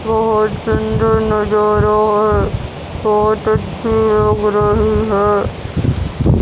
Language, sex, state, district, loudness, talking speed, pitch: Hindi, female, Haryana, Rohtak, -15 LUFS, 85 wpm, 210 Hz